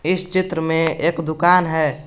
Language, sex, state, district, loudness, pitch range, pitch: Hindi, male, Jharkhand, Garhwa, -18 LUFS, 160-180 Hz, 165 Hz